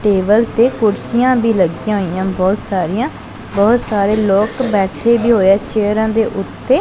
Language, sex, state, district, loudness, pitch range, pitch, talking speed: Punjabi, male, Punjab, Pathankot, -15 LUFS, 195-230 Hz, 210 Hz, 150 wpm